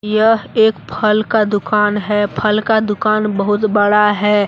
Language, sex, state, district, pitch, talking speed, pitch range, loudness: Hindi, male, Jharkhand, Deoghar, 210 Hz, 160 wpm, 205-215 Hz, -14 LUFS